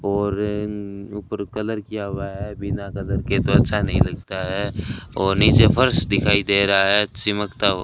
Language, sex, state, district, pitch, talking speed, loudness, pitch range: Hindi, male, Rajasthan, Bikaner, 100 Hz, 185 wpm, -20 LUFS, 100-105 Hz